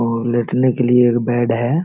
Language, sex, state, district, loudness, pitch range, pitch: Hindi, male, Jharkhand, Sahebganj, -16 LUFS, 120-125 Hz, 120 Hz